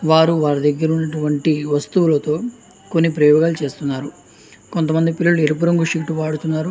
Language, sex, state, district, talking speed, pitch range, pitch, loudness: Telugu, male, Andhra Pradesh, Anantapur, 105 wpm, 150-165 Hz, 160 Hz, -18 LUFS